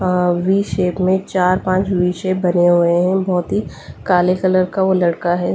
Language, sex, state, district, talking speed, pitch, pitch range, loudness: Hindi, female, Delhi, New Delhi, 195 wpm, 185 Hz, 180-185 Hz, -16 LUFS